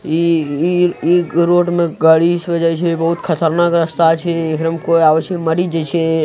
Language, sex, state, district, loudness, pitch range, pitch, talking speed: Hindi, male, Bihar, Araria, -15 LUFS, 160-170 Hz, 165 Hz, 155 wpm